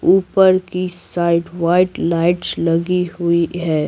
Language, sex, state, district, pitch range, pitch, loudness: Hindi, female, Bihar, Patna, 170-180 Hz, 175 Hz, -17 LUFS